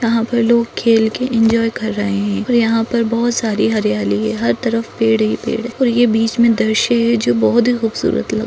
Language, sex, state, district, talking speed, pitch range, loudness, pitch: Hindi, female, Maharashtra, Nagpur, 225 wpm, 215-235 Hz, -15 LUFS, 225 Hz